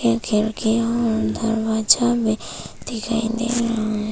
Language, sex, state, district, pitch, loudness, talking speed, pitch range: Hindi, female, Arunachal Pradesh, Papum Pare, 225 Hz, -20 LUFS, 115 wpm, 220-235 Hz